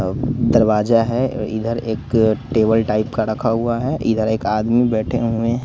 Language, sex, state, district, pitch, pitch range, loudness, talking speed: Hindi, male, Bihar, West Champaran, 115 Hz, 110-120 Hz, -18 LUFS, 180 wpm